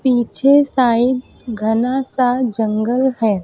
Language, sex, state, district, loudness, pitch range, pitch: Hindi, female, Uttar Pradesh, Lucknow, -16 LUFS, 225-260 Hz, 245 Hz